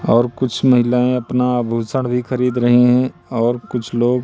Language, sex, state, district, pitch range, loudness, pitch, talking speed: Hindi, male, Madhya Pradesh, Katni, 120-125 Hz, -17 LUFS, 125 Hz, 185 wpm